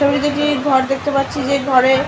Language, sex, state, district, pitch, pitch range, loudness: Bengali, female, West Bengal, North 24 Parganas, 275 Hz, 265-285 Hz, -16 LUFS